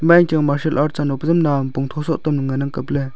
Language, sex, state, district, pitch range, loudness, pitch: Wancho, male, Arunachal Pradesh, Longding, 140-160 Hz, -18 LUFS, 150 Hz